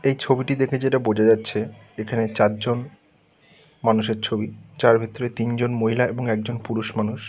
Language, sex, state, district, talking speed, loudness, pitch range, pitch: Bengali, male, West Bengal, North 24 Parganas, 150 wpm, -22 LUFS, 110-125 Hz, 115 Hz